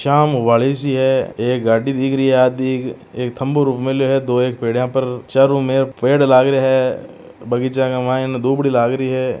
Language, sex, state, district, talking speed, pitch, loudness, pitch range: Marwari, male, Rajasthan, Churu, 195 wpm, 130 Hz, -16 LUFS, 125-135 Hz